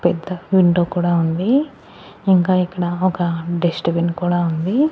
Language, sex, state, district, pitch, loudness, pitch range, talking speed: Telugu, female, Andhra Pradesh, Annamaya, 175 Hz, -18 LUFS, 170-185 Hz, 135 wpm